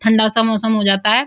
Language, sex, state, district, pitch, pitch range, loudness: Hindi, female, Uttar Pradesh, Muzaffarnagar, 220 Hz, 215-225 Hz, -14 LUFS